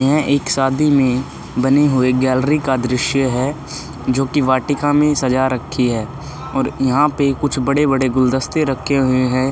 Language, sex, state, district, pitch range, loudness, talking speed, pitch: Hindi, male, Uttar Pradesh, Hamirpur, 130-145 Hz, -16 LUFS, 165 wpm, 135 Hz